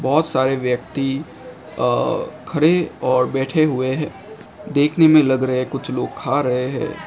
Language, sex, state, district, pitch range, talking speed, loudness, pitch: Hindi, male, Assam, Kamrup Metropolitan, 130-155 Hz, 155 wpm, -19 LUFS, 140 Hz